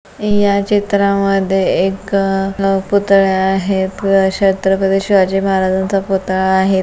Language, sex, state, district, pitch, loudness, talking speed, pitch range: Marathi, female, Maharashtra, Pune, 195 Hz, -14 LUFS, 105 wpm, 190-195 Hz